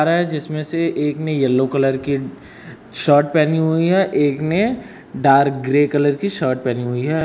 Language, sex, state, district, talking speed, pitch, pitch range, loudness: Hindi, male, Uttar Pradesh, Lucknow, 175 wpm, 150 Hz, 135-160 Hz, -18 LUFS